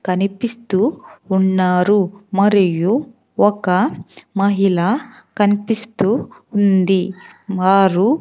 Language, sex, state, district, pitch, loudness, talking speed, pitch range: Telugu, female, Andhra Pradesh, Sri Satya Sai, 200 Hz, -17 LUFS, 65 wpm, 190-220 Hz